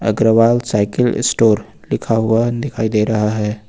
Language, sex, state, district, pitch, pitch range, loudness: Hindi, male, Uttar Pradesh, Lucknow, 110 Hz, 105-115 Hz, -16 LUFS